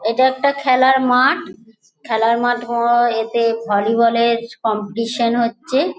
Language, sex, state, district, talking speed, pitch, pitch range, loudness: Bengali, female, West Bengal, Dakshin Dinajpur, 120 wpm, 235 Hz, 230-255 Hz, -17 LUFS